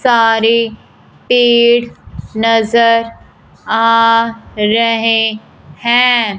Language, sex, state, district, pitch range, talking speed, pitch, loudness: Hindi, female, Punjab, Fazilka, 225-235 Hz, 55 wpm, 230 Hz, -12 LUFS